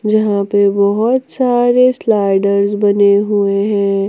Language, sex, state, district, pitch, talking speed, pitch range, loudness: Hindi, female, Jharkhand, Ranchi, 205 Hz, 115 wpm, 200-220 Hz, -13 LUFS